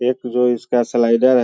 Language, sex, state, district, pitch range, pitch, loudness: Hindi, male, Bihar, Muzaffarpur, 120-125 Hz, 125 Hz, -17 LUFS